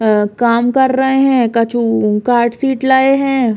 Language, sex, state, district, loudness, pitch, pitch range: Bundeli, female, Uttar Pradesh, Hamirpur, -13 LUFS, 240 Hz, 230-265 Hz